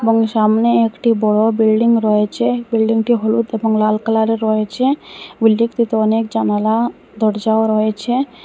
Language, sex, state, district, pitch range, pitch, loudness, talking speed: Bengali, female, Assam, Hailakandi, 215-230 Hz, 225 Hz, -16 LUFS, 120 wpm